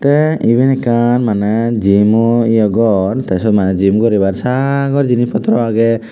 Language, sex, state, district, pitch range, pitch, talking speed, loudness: Chakma, male, Tripura, West Tripura, 105-125 Hz, 115 Hz, 155 wpm, -13 LUFS